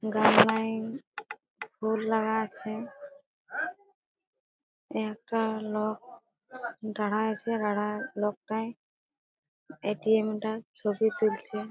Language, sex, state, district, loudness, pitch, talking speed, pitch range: Bengali, female, West Bengal, Jhargram, -30 LUFS, 220 Hz, 65 wpm, 215-250 Hz